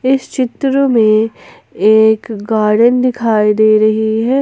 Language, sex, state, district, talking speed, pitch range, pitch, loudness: Hindi, female, Jharkhand, Ranchi, 120 wpm, 215-255 Hz, 220 Hz, -12 LUFS